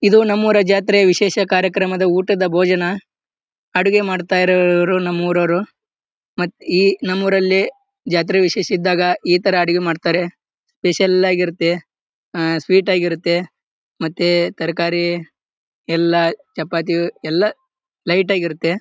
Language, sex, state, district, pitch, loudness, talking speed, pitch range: Kannada, male, Karnataka, Bijapur, 180 Hz, -17 LUFS, 110 wpm, 175-195 Hz